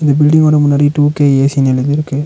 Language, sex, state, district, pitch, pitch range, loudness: Tamil, male, Tamil Nadu, Nilgiris, 145 Hz, 140-150 Hz, -11 LUFS